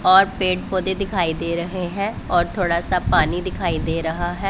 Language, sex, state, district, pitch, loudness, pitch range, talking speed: Hindi, female, Punjab, Pathankot, 180 Hz, -21 LUFS, 170-190 Hz, 200 wpm